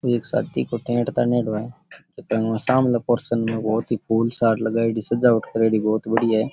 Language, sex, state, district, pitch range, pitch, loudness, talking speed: Rajasthani, male, Rajasthan, Churu, 110-120 Hz, 115 Hz, -21 LUFS, 110 wpm